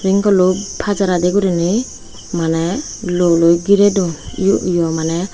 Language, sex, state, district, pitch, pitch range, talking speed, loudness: Chakma, female, Tripura, Unakoti, 185 Hz, 170-200 Hz, 125 wpm, -15 LUFS